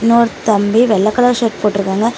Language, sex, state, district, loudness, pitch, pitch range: Tamil, female, Tamil Nadu, Namakkal, -13 LUFS, 225 Hz, 210-235 Hz